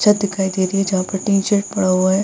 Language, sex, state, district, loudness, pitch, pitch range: Hindi, female, Bihar, Vaishali, -18 LUFS, 195 Hz, 190-200 Hz